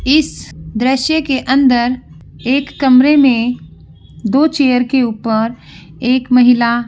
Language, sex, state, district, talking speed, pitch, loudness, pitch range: Hindi, female, Bihar, Begusarai, 120 wpm, 250 Hz, -13 LUFS, 235-270 Hz